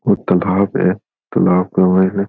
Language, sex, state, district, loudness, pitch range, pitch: Rajasthani, male, Rajasthan, Churu, -15 LUFS, 90-100 Hz, 95 Hz